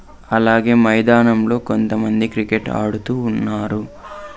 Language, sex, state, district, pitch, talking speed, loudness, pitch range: Telugu, male, Andhra Pradesh, Sri Satya Sai, 110 Hz, 80 wpm, -17 LUFS, 110-120 Hz